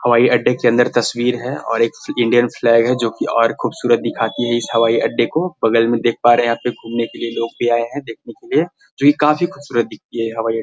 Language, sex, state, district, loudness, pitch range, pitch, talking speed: Hindi, male, Bihar, Gaya, -17 LUFS, 115-125 Hz, 120 Hz, 270 wpm